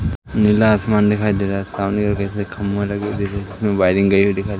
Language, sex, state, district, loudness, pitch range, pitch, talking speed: Hindi, male, Madhya Pradesh, Katni, -18 LUFS, 100-105 Hz, 100 Hz, 220 wpm